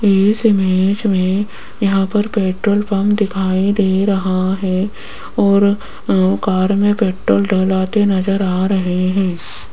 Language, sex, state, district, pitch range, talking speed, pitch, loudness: Hindi, female, Rajasthan, Jaipur, 190-205 Hz, 125 wpm, 195 Hz, -16 LUFS